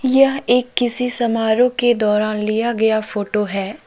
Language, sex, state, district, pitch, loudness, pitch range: Hindi, male, Jharkhand, Deoghar, 230 Hz, -18 LUFS, 215-245 Hz